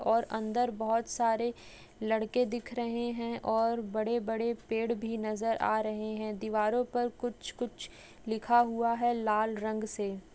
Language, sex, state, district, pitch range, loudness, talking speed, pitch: Hindi, female, Bihar, Jamui, 220-235 Hz, -32 LUFS, 155 wpm, 225 Hz